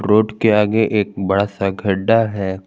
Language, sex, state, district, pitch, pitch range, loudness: Hindi, male, Jharkhand, Garhwa, 105 Hz, 95-110 Hz, -17 LUFS